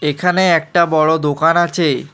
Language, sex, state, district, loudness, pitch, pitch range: Bengali, male, West Bengal, Alipurduar, -14 LUFS, 165 Hz, 155-175 Hz